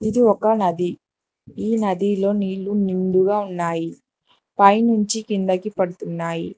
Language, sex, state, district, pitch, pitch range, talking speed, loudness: Telugu, female, Telangana, Hyderabad, 200 Hz, 185-210 Hz, 100 wpm, -20 LUFS